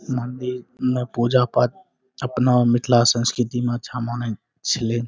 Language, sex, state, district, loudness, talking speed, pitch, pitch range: Maithili, male, Bihar, Saharsa, -21 LUFS, 140 wpm, 125 Hz, 120-125 Hz